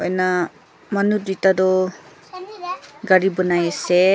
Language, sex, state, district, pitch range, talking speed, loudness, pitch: Nagamese, female, Nagaland, Kohima, 185-210 Hz, 100 wpm, -19 LUFS, 190 Hz